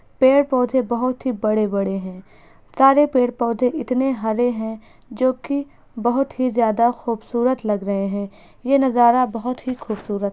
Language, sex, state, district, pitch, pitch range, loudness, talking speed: Hindi, female, Uttar Pradesh, Etah, 245 Hz, 220-255 Hz, -20 LUFS, 155 wpm